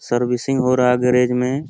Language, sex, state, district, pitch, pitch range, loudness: Hindi, male, Bihar, Lakhisarai, 125 Hz, 125-130 Hz, -17 LUFS